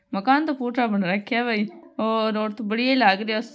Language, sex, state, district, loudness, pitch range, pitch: Marwari, female, Rajasthan, Nagaur, -22 LUFS, 215-255 Hz, 225 Hz